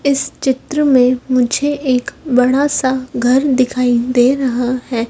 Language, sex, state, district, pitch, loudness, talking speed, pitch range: Hindi, female, Madhya Pradesh, Dhar, 255 Hz, -15 LUFS, 130 wpm, 250-275 Hz